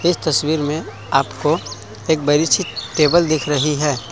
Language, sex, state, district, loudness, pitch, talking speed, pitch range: Hindi, male, Assam, Kamrup Metropolitan, -18 LUFS, 150 Hz, 160 wpm, 120-155 Hz